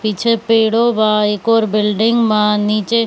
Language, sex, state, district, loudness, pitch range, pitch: Hindi, female, Bihar, Kishanganj, -14 LUFS, 210-230 Hz, 215 Hz